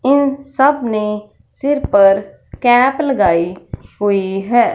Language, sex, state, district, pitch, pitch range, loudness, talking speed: Hindi, female, Punjab, Fazilka, 240 Hz, 200-275 Hz, -15 LUFS, 115 wpm